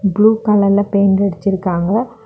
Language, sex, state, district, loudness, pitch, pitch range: Tamil, female, Tamil Nadu, Kanyakumari, -14 LUFS, 200 Hz, 195-215 Hz